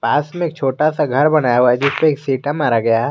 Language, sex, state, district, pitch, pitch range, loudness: Hindi, male, Jharkhand, Garhwa, 145 Hz, 125-155 Hz, -16 LUFS